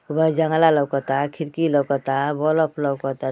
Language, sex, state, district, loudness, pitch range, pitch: Bhojpuri, male, Uttar Pradesh, Ghazipur, -21 LUFS, 140-160 Hz, 145 Hz